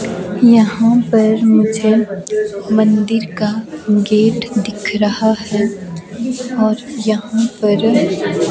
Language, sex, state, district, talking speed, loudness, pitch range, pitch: Hindi, female, Himachal Pradesh, Shimla, 85 wpm, -14 LUFS, 210-225 Hz, 215 Hz